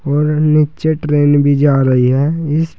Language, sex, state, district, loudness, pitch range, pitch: Hindi, male, Uttar Pradesh, Saharanpur, -13 LUFS, 145-155 Hz, 150 Hz